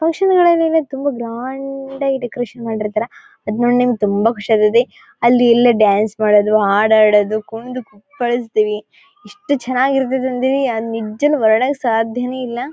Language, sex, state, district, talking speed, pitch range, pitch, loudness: Kannada, female, Karnataka, Bellary, 130 wpm, 220-270 Hz, 240 Hz, -16 LUFS